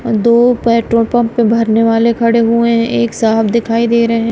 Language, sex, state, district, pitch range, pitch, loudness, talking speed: Hindi, female, Punjab, Kapurthala, 230-235 Hz, 230 Hz, -12 LUFS, 210 wpm